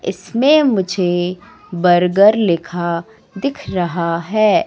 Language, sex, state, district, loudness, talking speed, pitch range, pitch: Hindi, female, Madhya Pradesh, Katni, -16 LUFS, 90 wpm, 175-215 Hz, 185 Hz